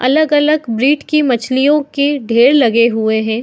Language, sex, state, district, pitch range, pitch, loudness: Hindi, female, Bihar, Madhepura, 230-295 Hz, 265 Hz, -13 LUFS